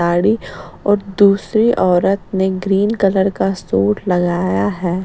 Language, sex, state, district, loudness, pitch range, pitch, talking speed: Hindi, female, Bihar, Patna, -16 LUFS, 180-205 Hz, 195 Hz, 120 wpm